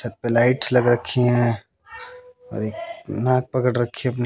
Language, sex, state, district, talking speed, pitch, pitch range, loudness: Hindi, male, Haryana, Jhajjar, 185 wpm, 125 Hz, 120-150 Hz, -20 LUFS